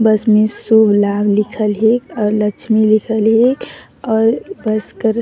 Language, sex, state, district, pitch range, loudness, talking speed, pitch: Sadri, female, Chhattisgarh, Jashpur, 215-225 Hz, -14 LUFS, 150 wpm, 220 Hz